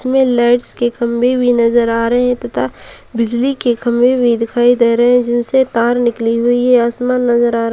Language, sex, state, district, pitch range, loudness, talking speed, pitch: Hindi, female, Bihar, Purnia, 235-245 Hz, -13 LUFS, 215 wpm, 240 Hz